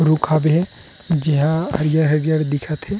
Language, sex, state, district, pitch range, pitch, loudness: Chhattisgarhi, male, Chhattisgarh, Rajnandgaon, 150-160 Hz, 155 Hz, -18 LUFS